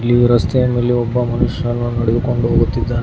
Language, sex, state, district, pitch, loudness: Kannada, female, Karnataka, Bidar, 120 Hz, -16 LUFS